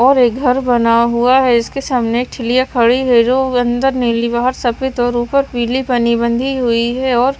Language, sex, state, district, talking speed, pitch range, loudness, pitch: Hindi, female, Maharashtra, Washim, 185 wpm, 235-260 Hz, -14 LUFS, 245 Hz